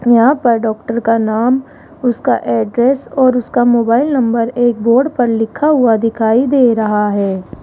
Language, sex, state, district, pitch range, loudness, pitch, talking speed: Hindi, female, Rajasthan, Jaipur, 225-255 Hz, -13 LUFS, 235 Hz, 155 wpm